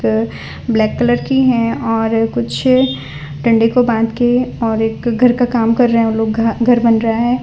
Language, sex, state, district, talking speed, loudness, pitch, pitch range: Hindi, female, Gujarat, Valsad, 195 wpm, -14 LUFS, 225 Hz, 220-240 Hz